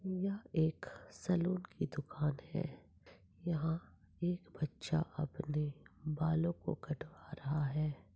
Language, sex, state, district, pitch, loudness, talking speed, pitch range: Hindi, female, Maharashtra, Pune, 160 Hz, -39 LUFS, 105 wpm, 150-175 Hz